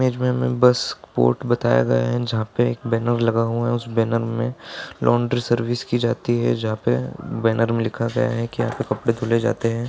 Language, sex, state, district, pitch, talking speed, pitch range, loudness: Hindi, male, Bihar, Purnia, 115 Hz, 225 wpm, 115-120 Hz, -21 LUFS